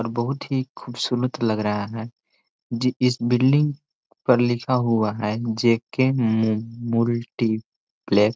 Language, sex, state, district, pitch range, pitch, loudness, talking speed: Hindi, male, Chhattisgarh, Korba, 110-125 Hz, 120 Hz, -23 LUFS, 130 wpm